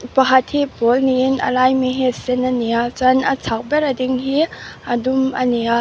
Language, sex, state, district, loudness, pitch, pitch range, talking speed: Mizo, female, Mizoram, Aizawl, -17 LUFS, 255 Hz, 245-265 Hz, 270 wpm